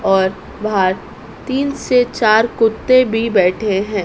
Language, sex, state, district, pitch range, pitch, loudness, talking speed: Hindi, female, Madhya Pradesh, Dhar, 195-245 Hz, 215 Hz, -15 LUFS, 135 wpm